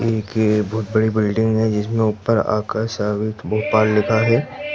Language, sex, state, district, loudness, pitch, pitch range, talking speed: Hindi, male, Madhya Pradesh, Bhopal, -19 LUFS, 110 Hz, 105-110 Hz, 150 wpm